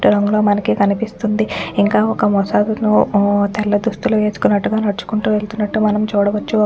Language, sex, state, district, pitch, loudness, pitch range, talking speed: Telugu, female, Telangana, Nalgonda, 210 Hz, -16 LUFS, 205-215 Hz, 115 wpm